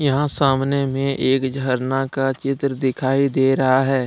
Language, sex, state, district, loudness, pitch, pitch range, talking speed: Hindi, male, Jharkhand, Deoghar, -19 LUFS, 135 Hz, 130-135 Hz, 160 wpm